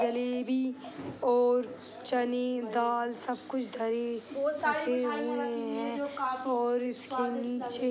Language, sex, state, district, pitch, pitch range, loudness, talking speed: Hindi, female, Bihar, East Champaran, 245 Hz, 240-255 Hz, -31 LUFS, 105 wpm